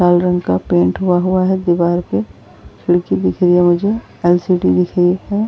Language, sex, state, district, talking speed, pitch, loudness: Hindi, female, Uttar Pradesh, Varanasi, 210 wpm, 175 Hz, -15 LUFS